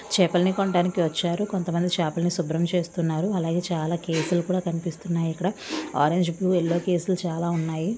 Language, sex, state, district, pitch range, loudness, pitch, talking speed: Telugu, female, Andhra Pradesh, Visakhapatnam, 170-180 Hz, -25 LUFS, 175 Hz, 145 wpm